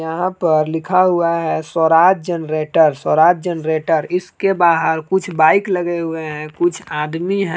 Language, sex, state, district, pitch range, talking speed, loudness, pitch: Hindi, male, Jharkhand, Palamu, 160-180 Hz, 150 wpm, -16 LUFS, 165 Hz